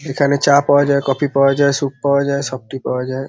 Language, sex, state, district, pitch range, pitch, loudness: Bengali, male, West Bengal, Paschim Medinipur, 135-140 Hz, 140 Hz, -16 LUFS